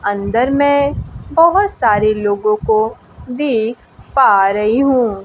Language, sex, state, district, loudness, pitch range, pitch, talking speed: Hindi, female, Bihar, Kaimur, -14 LUFS, 210-275 Hz, 225 Hz, 115 wpm